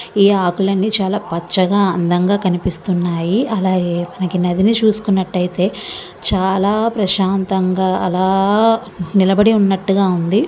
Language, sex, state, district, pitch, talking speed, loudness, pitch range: Telugu, female, Andhra Pradesh, Visakhapatnam, 190 Hz, 150 wpm, -16 LUFS, 185-205 Hz